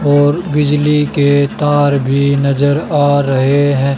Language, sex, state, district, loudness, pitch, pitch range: Hindi, male, Haryana, Jhajjar, -12 LUFS, 145 Hz, 140-145 Hz